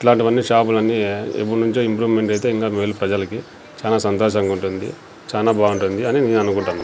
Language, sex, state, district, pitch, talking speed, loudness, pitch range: Telugu, male, Andhra Pradesh, Sri Satya Sai, 110 Hz, 130 wpm, -19 LUFS, 100-115 Hz